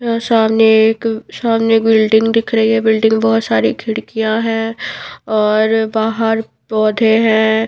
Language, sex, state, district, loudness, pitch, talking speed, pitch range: Hindi, female, Bihar, Patna, -14 LUFS, 225 Hz, 135 wpm, 220-225 Hz